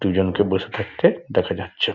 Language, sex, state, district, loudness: Bengali, male, West Bengal, Dakshin Dinajpur, -21 LUFS